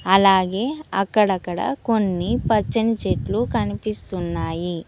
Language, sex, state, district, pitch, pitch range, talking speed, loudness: Telugu, female, Telangana, Mahabubabad, 195 Hz, 175-220 Hz, 75 wpm, -21 LUFS